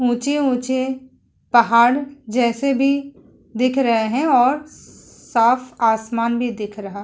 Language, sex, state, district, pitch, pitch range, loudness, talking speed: Hindi, female, Uttar Pradesh, Muzaffarnagar, 250 Hz, 230-265 Hz, -18 LUFS, 110 wpm